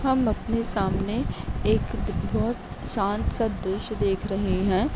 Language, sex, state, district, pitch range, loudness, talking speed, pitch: Hindi, female, Uttar Pradesh, Jalaun, 195-230 Hz, -26 LUFS, 135 wpm, 200 Hz